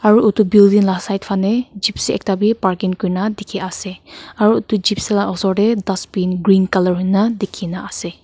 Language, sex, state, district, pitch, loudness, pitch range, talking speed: Nagamese, female, Nagaland, Kohima, 195 Hz, -16 LUFS, 190-210 Hz, 190 wpm